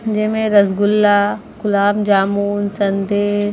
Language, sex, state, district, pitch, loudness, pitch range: Bhojpuri, female, Bihar, East Champaran, 205 Hz, -16 LUFS, 200-210 Hz